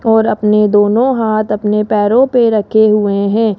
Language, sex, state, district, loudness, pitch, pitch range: Hindi, female, Rajasthan, Jaipur, -12 LUFS, 215 Hz, 210-225 Hz